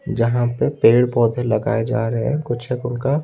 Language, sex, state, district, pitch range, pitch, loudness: Hindi, male, Odisha, Khordha, 115-135 Hz, 120 Hz, -19 LUFS